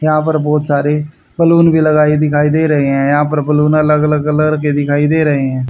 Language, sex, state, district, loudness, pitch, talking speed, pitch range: Hindi, male, Haryana, Charkhi Dadri, -12 LUFS, 150 Hz, 230 wpm, 145-155 Hz